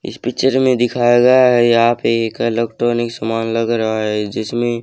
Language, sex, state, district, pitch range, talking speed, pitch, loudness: Hindi, male, Haryana, Charkhi Dadri, 115-120 Hz, 185 wpm, 120 Hz, -15 LUFS